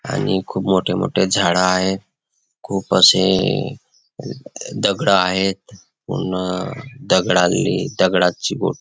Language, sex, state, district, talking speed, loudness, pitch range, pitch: Marathi, male, Maharashtra, Chandrapur, 95 wpm, -17 LUFS, 90-95 Hz, 95 Hz